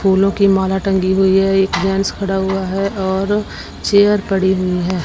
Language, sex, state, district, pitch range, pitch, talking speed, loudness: Hindi, female, Punjab, Fazilka, 190-195 Hz, 195 Hz, 190 wpm, -15 LUFS